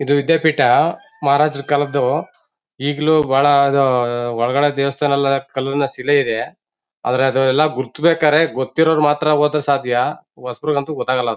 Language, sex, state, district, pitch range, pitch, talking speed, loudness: Kannada, male, Karnataka, Mysore, 130-150 Hz, 140 Hz, 135 wpm, -17 LUFS